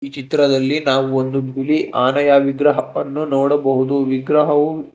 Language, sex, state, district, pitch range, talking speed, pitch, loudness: Kannada, male, Karnataka, Bangalore, 135-145 Hz, 110 wpm, 140 Hz, -17 LUFS